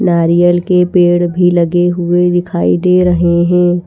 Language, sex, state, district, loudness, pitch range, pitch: Hindi, female, Chhattisgarh, Raipur, -11 LUFS, 175-180 Hz, 175 Hz